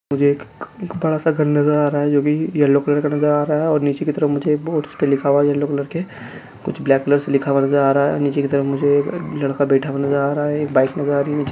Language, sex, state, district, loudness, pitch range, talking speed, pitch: Hindi, male, Chhattisgarh, Bastar, -18 LUFS, 140-150 Hz, 310 wpm, 145 Hz